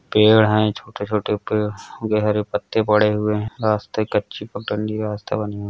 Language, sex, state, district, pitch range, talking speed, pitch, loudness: Hindi, male, Uttar Pradesh, Hamirpur, 105-110 Hz, 155 wpm, 105 Hz, -20 LUFS